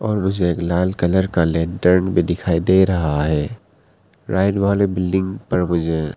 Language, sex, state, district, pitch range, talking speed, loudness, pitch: Hindi, male, Arunachal Pradesh, Papum Pare, 85-95 Hz, 165 wpm, -18 LUFS, 90 Hz